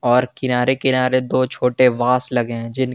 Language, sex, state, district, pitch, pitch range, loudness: Hindi, male, Jharkhand, Garhwa, 125 Hz, 125-130 Hz, -18 LUFS